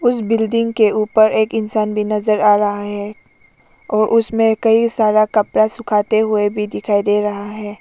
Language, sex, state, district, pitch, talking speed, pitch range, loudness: Hindi, female, Arunachal Pradesh, Lower Dibang Valley, 215 Hz, 175 wpm, 210-225 Hz, -16 LUFS